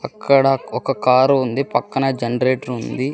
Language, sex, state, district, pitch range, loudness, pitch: Telugu, male, Andhra Pradesh, Sri Satya Sai, 125-135 Hz, -18 LUFS, 130 Hz